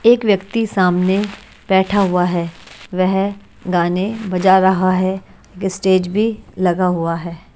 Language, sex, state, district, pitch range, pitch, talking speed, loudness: Hindi, female, Haryana, Jhajjar, 180-200 Hz, 190 Hz, 125 wpm, -17 LUFS